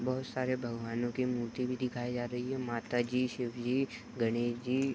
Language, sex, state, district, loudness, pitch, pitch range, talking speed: Hindi, male, Uttar Pradesh, Gorakhpur, -35 LUFS, 125 Hz, 120-130 Hz, 205 wpm